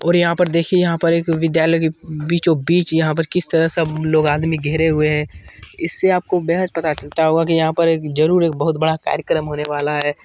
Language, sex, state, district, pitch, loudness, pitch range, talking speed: Hindi, male, Bihar, Jamui, 160 Hz, -17 LUFS, 155-170 Hz, 220 wpm